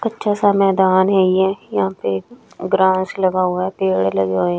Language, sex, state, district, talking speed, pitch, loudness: Hindi, female, Chhattisgarh, Raipur, 195 wpm, 190 Hz, -17 LUFS